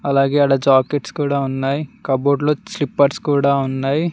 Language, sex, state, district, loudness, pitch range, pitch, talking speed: Telugu, male, Telangana, Mahabubabad, -18 LUFS, 135-145 Hz, 140 Hz, 145 wpm